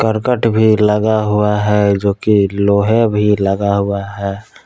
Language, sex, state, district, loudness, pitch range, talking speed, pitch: Hindi, male, Jharkhand, Palamu, -14 LUFS, 100-110 Hz, 140 wpm, 105 Hz